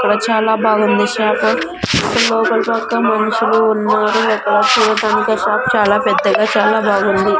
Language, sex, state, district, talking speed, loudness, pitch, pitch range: Telugu, female, Andhra Pradesh, Sri Satya Sai, 120 wpm, -14 LUFS, 215 Hz, 210-220 Hz